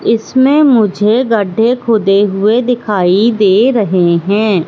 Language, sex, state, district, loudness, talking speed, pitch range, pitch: Hindi, female, Madhya Pradesh, Katni, -11 LUFS, 115 wpm, 195-235 Hz, 220 Hz